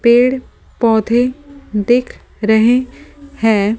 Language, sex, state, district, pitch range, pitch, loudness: Hindi, female, Delhi, New Delhi, 220-255 Hz, 240 Hz, -15 LUFS